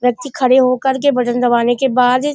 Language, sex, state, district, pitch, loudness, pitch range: Hindi, female, Uttar Pradesh, Budaun, 255 Hz, -14 LUFS, 245-265 Hz